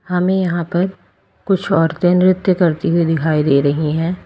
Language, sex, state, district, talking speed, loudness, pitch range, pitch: Hindi, female, Uttar Pradesh, Lalitpur, 170 wpm, -16 LUFS, 160-185 Hz, 175 Hz